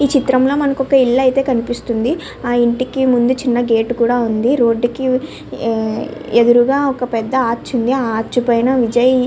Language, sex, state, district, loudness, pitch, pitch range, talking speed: Telugu, female, Andhra Pradesh, Srikakulam, -15 LUFS, 245 Hz, 235-260 Hz, 175 wpm